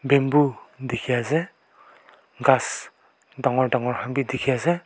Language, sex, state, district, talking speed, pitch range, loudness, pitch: Nagamese, male, Nagaland, Kohima, 110 wpm, 125-140 Hz, -23 LUFS, 130 Hz